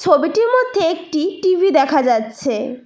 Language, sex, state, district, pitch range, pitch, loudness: Bengali, female, West Bengal, Cooch Behar, 265-375 Hz, 325 Hz, -16 LUFS